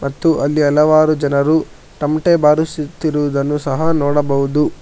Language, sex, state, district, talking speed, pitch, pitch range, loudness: Kannada, male, Karnataka, Bangalore, 100 wpm, 150 Hz, 145-155 Hz, -15 LUFS